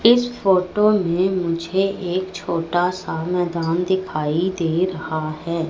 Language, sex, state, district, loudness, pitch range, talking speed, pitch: Hindi, female, Madhya Pradesh, Katni, -21 LUFS, 165-190 Hz, 125 wpm, 180 Hz